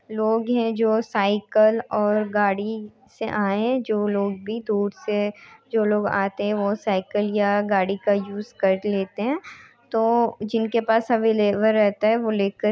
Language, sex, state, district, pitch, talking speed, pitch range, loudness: Hindi, female, Bihar, Muzaffarpur, 210 Hz, 170 wpm, 205-225 Hz, -22 LUFS